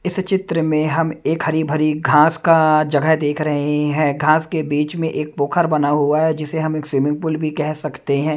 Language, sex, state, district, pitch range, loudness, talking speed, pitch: Hindi, male, Haryana, Jhajjar, 150-160 Hz, -18 LUFS, 220 wpm, 155 Hz